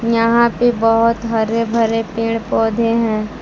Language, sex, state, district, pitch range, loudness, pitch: Hindi, female, Jharkhand, Palamu, 225-230 Hz, -16 LUFS, 230 Hz